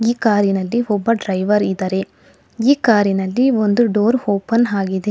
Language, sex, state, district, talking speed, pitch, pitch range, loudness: Kannada, female, Karnataka, Bangalore, 140 wpm, 210 Hz, 195-235 Hz, -17 LUFS